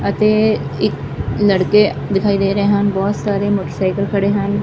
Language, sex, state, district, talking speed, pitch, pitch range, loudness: Punjabi, female, Punjab, Fazilka, 155 wpm, 200 Hz, 195-205 Hz, -16 LUFS